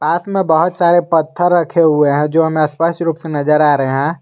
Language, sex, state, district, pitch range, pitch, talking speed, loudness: Hindi, male, Jharkhand, Garhwa, 150-170 Hz, 160 Hz, 240 wpm, -14 LUFS